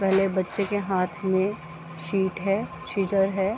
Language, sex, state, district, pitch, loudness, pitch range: Hindi, female, Bihar, Gopalganj, 195 Hz, -26 LUFS, 185-200 Hz